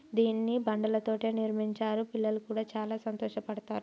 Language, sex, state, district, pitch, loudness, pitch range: Telugu, female, Telangana, Karimnagar, 220 Hz, -32 LUFS, 215-225 Hz